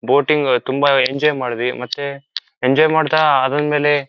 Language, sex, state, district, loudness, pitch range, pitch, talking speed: Kannada, male, Karnataka, Shimoga, -16 LUFS, 130-150 Hz, 140 Hz, 145 wpm